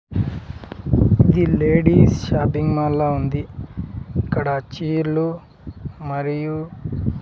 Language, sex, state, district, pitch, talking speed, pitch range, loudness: Telugu, male, Andhra Pradesh, Sri Satya Sai, 145 Hz, 75 wpm, 125-155 Hz, -19 LUFS